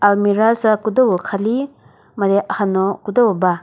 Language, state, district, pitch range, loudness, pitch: Chakhesang, Nagaland, Dimapur, 200-225 Hz, -17 LUFS, 205 Hz